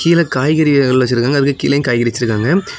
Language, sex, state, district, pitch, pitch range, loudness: Tamil, male, Tamil Nadu, Kanyakumari, 140 Hz, 120-155 Hz, -14 LUFS